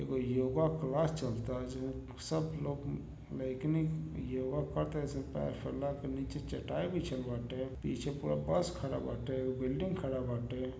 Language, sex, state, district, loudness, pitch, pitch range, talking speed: Bhojpuri, male, Uttar Pradesh, Gorakhpur, -37 LUFS, 130 Hz, 125-145 Hz, 140 wpm